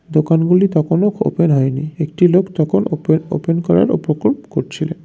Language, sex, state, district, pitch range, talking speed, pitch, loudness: Bengali, male, West Bengal, North 24 Parganas, 155-180 Hz, 145 wpm, 165 Hz, -16 LUFS